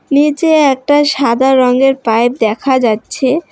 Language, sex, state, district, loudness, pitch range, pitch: Bengali, female, West Bengal, Alipurduar, -12 LUFS, 245-290 Hz, 265 Hz